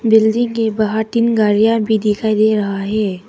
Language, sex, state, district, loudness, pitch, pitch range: Hindi, female, Arunachal Pradesh, Papum Pare, -15 LUFS, 220 Hz, 210-220 Hz